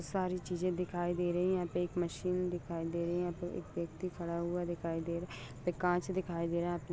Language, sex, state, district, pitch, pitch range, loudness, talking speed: Hindi, female, Bihar, Jahanabad, 175 Hz, 170-180 Hz, -37 LUFS, 250 wpm